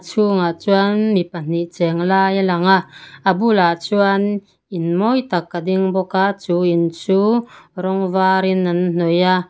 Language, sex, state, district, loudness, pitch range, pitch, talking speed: Mizo, female, Mizoram, Aizawl, -17 LUFS, 175-195 Hz, 190 Hz, 175 wpm